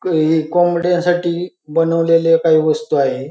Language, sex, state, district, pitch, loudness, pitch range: Marathi, male, Maharashtra, Pune, 165 Hz, -15 LUFS, 155-175 Hz